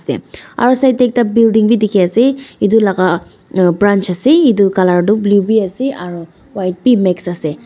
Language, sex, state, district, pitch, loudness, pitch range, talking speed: Nagamese, female, Nagaland, Dimapur, 205 Hz, -13 LUFS, 180-240 Hz, 180 wpm